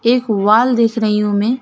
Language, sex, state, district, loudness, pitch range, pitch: Hindi, female, West Bengal, Alipurduar, -14 LUFS, 210-240 Hz, 225 Hz